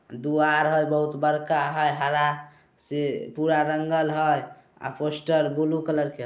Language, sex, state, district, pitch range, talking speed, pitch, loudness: Hindi, male, Bihar, Samastipur, 145-155 Hz, 135 wpm, 150 Hz, -24 LUFS